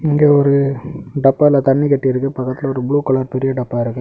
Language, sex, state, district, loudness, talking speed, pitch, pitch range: Tamil, male, Tamil Nadu, Kanyakumari, -15 LUFS, 195 wpm, 135 Hz, 130-145 Hz